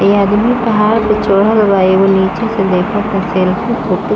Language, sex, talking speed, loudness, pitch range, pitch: Bhojpuri, female, 160 wpm, -12 LUFS, 190-215 Hz, 205 Hz